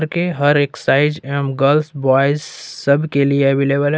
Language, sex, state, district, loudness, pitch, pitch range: Hindi, male, Jharkhand, Ranchi, -16 LUFS, 140 Hz, 140-150 Hz